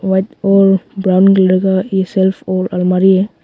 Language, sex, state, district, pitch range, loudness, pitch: Hindi, male, Arunachal Pradesh, Longding, 185-195 Hz, -13 LUFS, 190 Hz